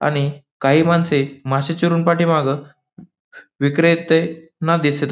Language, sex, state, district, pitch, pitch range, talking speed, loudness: Marathi, male, Maharashtra, Pune, 160 Hz, 140-170 Hz, 115 wpm, -18 LUFS